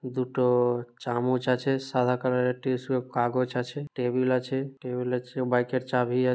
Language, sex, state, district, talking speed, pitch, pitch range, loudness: Bengali, male, West Bengal, Dakshin Dinajpur, 140 wpm, 125 Hz, 125-130 Hz, -27 LUFS